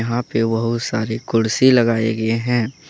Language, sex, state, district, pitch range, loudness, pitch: Hindi, male, Jharkhand, Deoghar, 110-120 Hz, -18 LUFS, 115 Hz